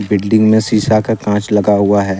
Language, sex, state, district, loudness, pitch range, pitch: Hindi, male, Jharkhand, Deoghar, -13 LUFS, 100-110 Hz, 105 Hz